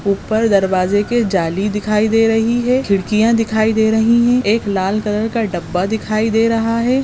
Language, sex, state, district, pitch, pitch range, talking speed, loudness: Hindi, female, Goa, North and South Goa, 220 Hz, 200-230 Hz, 185 wpm, -15 LUFS